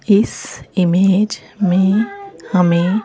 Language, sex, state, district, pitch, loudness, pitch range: Hindi, female, Madhya Pradesh, Bhopal, 195 Hz, -16 LUFS, 180-215 Hz